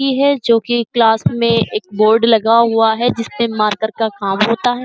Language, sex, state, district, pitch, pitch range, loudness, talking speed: Hindi, female, Uttar Pradesh, Jyotiba Phule Nagar, 230 Hz, 220-235 Hz, -14 LUFS, 195 wpm